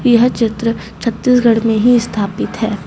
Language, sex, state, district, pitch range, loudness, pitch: Hindi, female, Chhattisgarh, Raipur, 220-240 Hz, -14 LUFS, 230 Hz